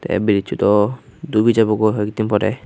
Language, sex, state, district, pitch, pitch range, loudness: Chakma, male, Tripura, Unakoti, 110 Hz, 105-115 Hz, -17 LUFS